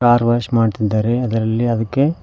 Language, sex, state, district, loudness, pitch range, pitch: Kannada, male, Karnataka, Koppal, -17 LUFS, 110-120 Hz, 120 Hz